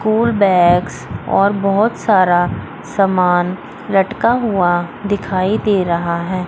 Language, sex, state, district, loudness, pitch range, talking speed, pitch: Hindi, female, Chandigarh, Chandigarh, -15 LUFS, 175-205 Hz, 110 wpm, 190 Hz